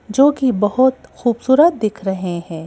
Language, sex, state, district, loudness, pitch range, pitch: Hindi, female, Madhya Pradesh, Bhopal, -16 LUFS, 190-260 Hz, 240 Hz